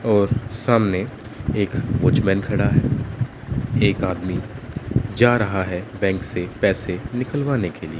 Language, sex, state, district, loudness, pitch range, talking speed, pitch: Hindi, male, Chandigarh, Chandigarh, -21 LUFS, 95-125 Hz, 125 wpm, 110 Hz